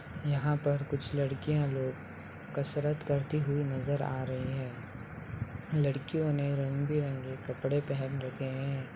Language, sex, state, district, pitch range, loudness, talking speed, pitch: Hindi, male, Bihar, Muzaffarpur, 130-145 Hz, -33 LUFS, 125 wpm, 140 Hz